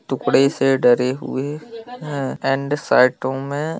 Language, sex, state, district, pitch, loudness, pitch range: Hindi, male, Bihar, Bhagalpur, 135 Hz, -19 LUFS, 130-150 Hz